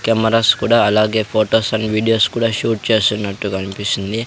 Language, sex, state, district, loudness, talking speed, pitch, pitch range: Telugu, male, Andhra Pradesh, Sri Satya Sai, -16 LUFS, 140 wpm, 110 Hz, 105-115 Hz